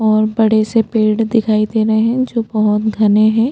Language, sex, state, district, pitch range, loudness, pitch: Hindi, female, Chhattisgarh, Jashpur, 215-225 Hz, -14 LUFS, 220 Hz